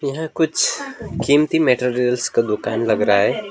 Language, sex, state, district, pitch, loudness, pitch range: Hindi, male, West Bengal, Alipurduar, 125 Hz, -18 LUFS, 110-155 Hz